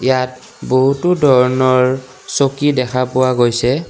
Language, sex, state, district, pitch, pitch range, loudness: Assamese, male, Assam, Kamrup Metropolitan, 130 Hz, 130-135 Hz, -15 LUFS